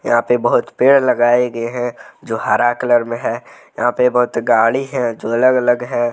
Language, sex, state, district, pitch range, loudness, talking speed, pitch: Hindi, male, Jharkhand, Deoghar, 120-125 Hz, -16 LUFS, 205 wpm, 120 Hz